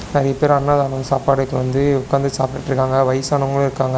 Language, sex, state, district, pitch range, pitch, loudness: Tamil, male, Tamil Nadu, Chennai, 130-140 Hz, 135 Hz, -18 LUFS